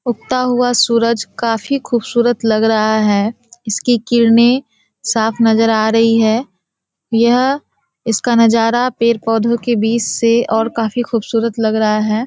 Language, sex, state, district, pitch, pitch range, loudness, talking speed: Hindi, female, Bihar, Kishanganj, 230 Hz, 220-240 Hz, -14 LUFS, 140 wpm